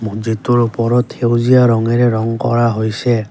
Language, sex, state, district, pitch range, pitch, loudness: Assamese, male, Assam, Kamrup Metropolitan, 110-120 Hz, 115 Hz, -14 LUFS